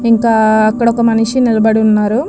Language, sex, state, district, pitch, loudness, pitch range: Telugu, female, Andhra Pradesh, Krishna, 225 Hz, -11 LUFS, 220-235 Hz